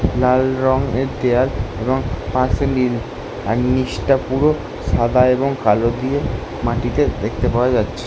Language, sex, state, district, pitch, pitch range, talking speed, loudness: Bengali, male, West Bengal, Kolkata, 125 Hz, 115-130 Hz, 135 wpm, -18 LUFS